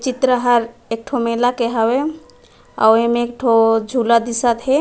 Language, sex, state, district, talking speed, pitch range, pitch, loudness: Chhattisgarhi, female, Chhattisgarh, Raigarh, 175 wpm, 230-250 Hz, 235 Hz, -17 LUFS